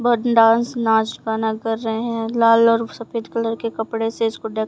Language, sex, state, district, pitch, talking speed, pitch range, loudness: Hindi, female, Haryana, Jhajjar, 225 Hz, 205 wpm, 225-230 Hz, -19 LUFS